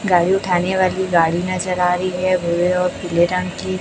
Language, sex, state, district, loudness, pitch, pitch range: Hindi, male, Chhattisgarh, Raipur, -18 LUFS, 180 Hz, 175-185 Hz